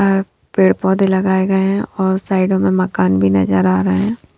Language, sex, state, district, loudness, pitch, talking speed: Hindi, female, Haryana, Rohtak, -15 LUFS, 190 Hz, 180 wpm